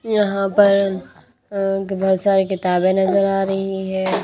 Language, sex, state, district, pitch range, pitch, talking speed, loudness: Hindi, female, Haryana, Rohtak, 190-195 Hz, 195 Hz, 140 wpm, -18 LUFS